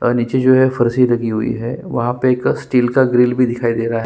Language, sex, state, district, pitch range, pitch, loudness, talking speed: Hindi, male, Chhattisgarh, Sukma, 120-130 Hz, 120 Hz, -16 LUFS, 280 wpm